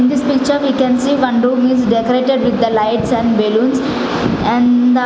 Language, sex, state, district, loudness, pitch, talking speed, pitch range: English, female, Punjab, Fazilka, -14 LUFS, 250 Hz, 215 wpm, 235-265 Hz